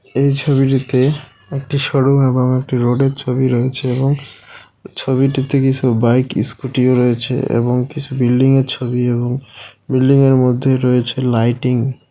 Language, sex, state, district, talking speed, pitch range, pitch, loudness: Bengali, male, West Bengal, Alipurduar, 125 wpm, 125-135 Hz, 130 Hz, -15 LUFS